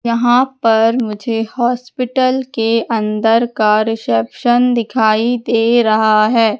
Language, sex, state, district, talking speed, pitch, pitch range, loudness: Hindi, female, Madhya Pradesh, Katni, 110 wpm, 230 Hz, 220-245 Hz, -14 LUFS